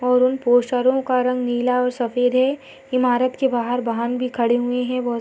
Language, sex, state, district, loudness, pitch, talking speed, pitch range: Hindi, female, Jharkhand, Sahebganj, -20 LUFS, 250 Hz, 230 wpm, 245-255 Hz